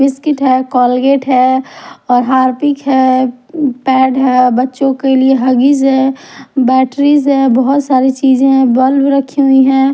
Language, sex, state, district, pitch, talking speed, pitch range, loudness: Hindi, female, Haryana, Rohtak, 265 Hz, 140 wpm, 255-275 Hz, -11 LUFS